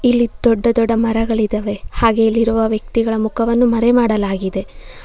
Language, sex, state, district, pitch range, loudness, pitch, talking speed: Kannada, female, Karnataka, Bangalore, 220-235 Hz, -16 LUFS, 230 Hz, 105 wpm